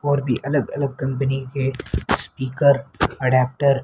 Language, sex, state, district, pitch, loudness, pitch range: Hindi, male, Haryana, Rohtak, 135 Hz, -21 LUFS, 130-140 Hz